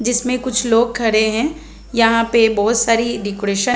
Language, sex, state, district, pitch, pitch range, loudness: Hindi, female, Chhattisgarh, Bilaspur, 230 Hz, 225-245 Hz, -16 LUFS